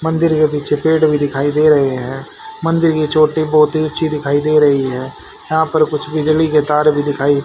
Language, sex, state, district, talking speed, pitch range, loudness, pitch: Hindi, male, Haryana, Rohtak, 215 wpm, 145-155 Hz, -14 LUFS, 150 Hz